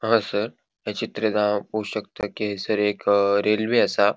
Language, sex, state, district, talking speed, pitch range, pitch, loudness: Konkani, male, Goa, North and South Goa, 160 wpm, 105-110 Hz, 105 Hz, -23 LUFS